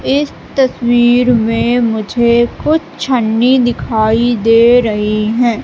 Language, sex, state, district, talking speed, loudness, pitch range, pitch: Hindi, female, Madhya Pradesh, Katni, 105 wpm, -12 LUFS, 225-245 Hz, 240 Hz